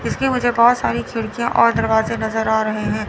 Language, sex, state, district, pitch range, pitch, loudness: Hindi, female, Chandigarh, Chandigarh, 220-235 Hz, 225 Hz, -18 LUFS